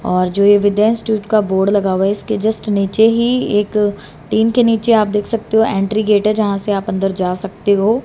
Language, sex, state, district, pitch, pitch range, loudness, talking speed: Hindi, female, Haryana, Charkhi Dadri, 210 Hz, 200-220 Hz, -15 LUFS, 240 wpm